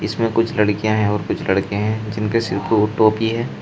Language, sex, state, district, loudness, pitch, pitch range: Hindi, male, Uttar Pradesh, Shamli, -19 LUFS, 110 Hz, 105-115 Hz